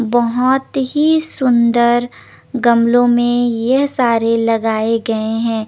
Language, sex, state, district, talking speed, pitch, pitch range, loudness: Hindi, female, Chandigarh, Chandigarh, 105 wpm, 240 Hz, 230-255 Hz, -14 LUFS